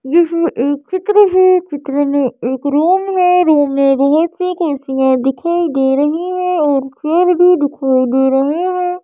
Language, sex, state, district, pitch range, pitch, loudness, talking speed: Hindi, female, Madhya Pradesh, Bhopal, 275-360 Hz, 300 Hz, -13 LUFS, 160 wpm